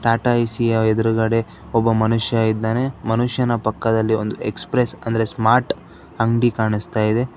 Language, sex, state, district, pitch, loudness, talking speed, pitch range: Kannada, male, Karnataka, Bangalore, 115 Hz, -19 LUFS, 130 wpm, 110-120 Hz